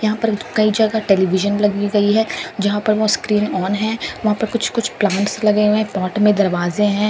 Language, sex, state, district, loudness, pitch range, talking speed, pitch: Hindi, female, Delhi, New Delhi, -17 LUFS, 205-215 Hz, 210 wpm, 210 Hz